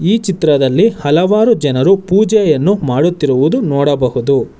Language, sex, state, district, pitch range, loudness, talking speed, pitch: Kannada, male, Karnataka, Bangalore, 140-200 Hz, -12 LUFS, 90 wpm, 155 Hz